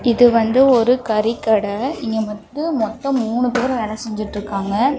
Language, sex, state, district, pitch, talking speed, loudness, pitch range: Tamil, female, Tamil Nadu, Namakkal, 230 Hz, 155 wpm, -18 LUFS, 215-255 Hz